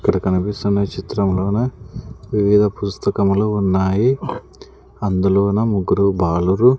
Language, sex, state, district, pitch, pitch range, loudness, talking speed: Telugu, male, Andhra Pradesh, Sri Satya Sai, 100 Hz, 95-105 Hz, -18 LUFS, 80 wpm